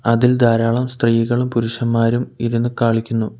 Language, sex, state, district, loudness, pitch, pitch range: Malayalam, male, Kerala, Kollam, -17 LUFS, 115 Hz, 115-120 Hz